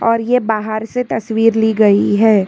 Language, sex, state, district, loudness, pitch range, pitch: Hindi, female, Karnataka, Bangalore, -14 LUFS, 215-230 Hz, 220 Hz